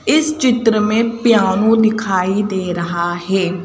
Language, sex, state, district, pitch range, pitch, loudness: Hindi, female, Madhya Pradesh, Bhopal, 185-230 Hz, 210 Hz, -15 LUFS